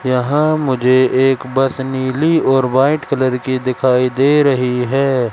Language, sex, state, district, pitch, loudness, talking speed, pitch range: Hindi, male, Madhya Pradesh, Katni, 130 Hz, -15 LUFS, 145 wpm, 130-135 Hz